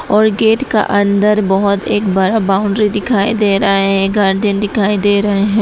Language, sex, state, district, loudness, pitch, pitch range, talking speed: Hindi, female, Tripura, West Tripura, -13 LUFS, 205 Hz, 200-210 Hz, 180 wpm